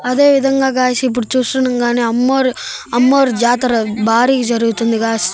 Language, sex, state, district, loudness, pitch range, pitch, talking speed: Telugu, male, Andhra Pradesh, Annamaya, -14 LUFS, 230-260 Hz, 245 Hz, 125 wpm